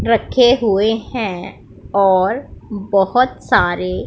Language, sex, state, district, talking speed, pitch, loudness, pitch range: Hindi, female, Punjab, Pathankot, 90 wpm, 205 Hz, -16 LUFS, 190-230 Hz